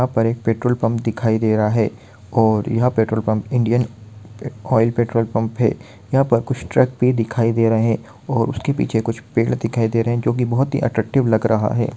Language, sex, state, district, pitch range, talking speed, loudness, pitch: Hindi, male, Jharkhand, Sahebganj, 110-125 Hz, 220 wpm, -19 LUFS, 115 Hz